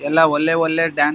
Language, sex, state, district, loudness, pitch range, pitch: Kannada, male, Karnataka, Bellary, -17 LUFS, 150-165 Hz, 160 Hz